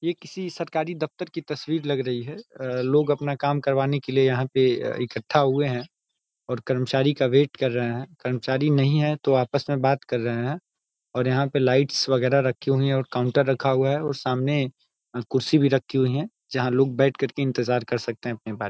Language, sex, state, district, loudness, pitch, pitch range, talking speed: Hindi, male, Uttar Pradesh, Ghazipur, -24 LUFS, 135 Hz, 125-145 Hz, 220 wpm